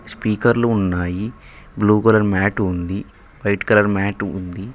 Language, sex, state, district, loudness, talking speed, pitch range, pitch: Telugu, male, Telangana, Mahabubabad, -18 LUFS, 125 wpm, 95-105 Hz, 100 Hz